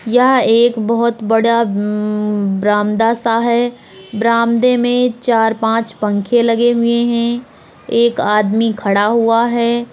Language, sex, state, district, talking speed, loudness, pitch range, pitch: Hindi, female, Uttar Pradesh, Etah, 125 wpm, -14 LUFS, 210-235 Hz, 230 Hz